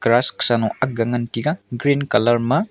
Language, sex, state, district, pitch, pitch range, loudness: Wancho, male, Arunachal Pradesh, Longding, 120 Hz, 120-140 Hz, -18 LUFS